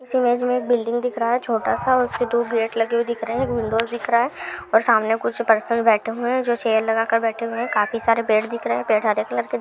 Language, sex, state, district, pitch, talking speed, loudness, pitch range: Hindi, female, Uttar Pradesh, Hamirpur, 230 Hz, 295 wpm, -21 LUFS, 225-240 Hz